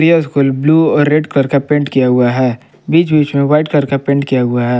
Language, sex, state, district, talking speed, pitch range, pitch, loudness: Hindi, male, Jharkhand, Palamu, 250 wpm, 130-150 Hz, 140 Hz, -12 LUFS